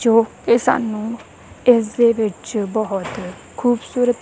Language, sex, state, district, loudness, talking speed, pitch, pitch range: Punjabi, female, Punjab, Kapurthala, -19 LUFS, 100 wpm, 230 Hz, 215-240 Hz